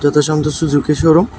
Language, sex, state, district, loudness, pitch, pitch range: Bengali, male, Tripura, West Tripura, -14 LUFS, 150 Hz, 150-160 Hz